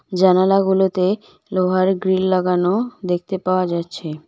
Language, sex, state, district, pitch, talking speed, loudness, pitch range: Bengali, female, West Bengal, Cooch Behar, 185 Hz, 100 wpm, -18 LUFS, 180-190 Hz